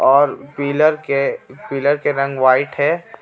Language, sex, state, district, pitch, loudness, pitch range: Hindi, male, Jharkhand, Ranchi, 140 Hz, -17 LUFS, 140-145 Hz